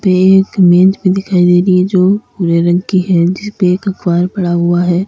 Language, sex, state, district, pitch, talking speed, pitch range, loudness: Hindi, female, Uttar Pradesh, Lalitpur, 185 Hz, 225 wpm, 175-190 Hz, -11 LUFS